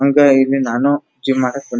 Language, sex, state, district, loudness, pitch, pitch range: Kannada, male, Karnataka, Dharwad, -15 LUFS, 135 Hz, 130-140 Hz